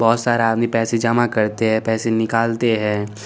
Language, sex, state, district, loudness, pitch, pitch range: Hindi, male, Chandigarh, Chandigarh, -18 LUFS, 115 Hz, 110-115 Hz